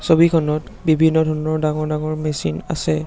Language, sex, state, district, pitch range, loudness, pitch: Assamese, male, Assam, Sonitpur, 155-160 Hz, -19 LUFS, 155 Hz